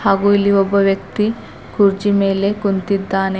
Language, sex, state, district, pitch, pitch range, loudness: Kannada, female, Karnataka, Bidar, 200 Hz, 195-205 Hz, -16 LUFS